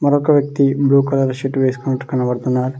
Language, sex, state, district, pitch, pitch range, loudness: Telugu, male, Telangana, Mahabubabad, 135 Hz, 130-140 Hz, -17 LUFS